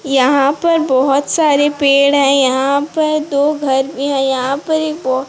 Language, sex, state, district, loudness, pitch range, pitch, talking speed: Hindi, female, Odisha, Sambalpur, -14 LUFS, 270-300 Hz, 280 Hz, 180 wpm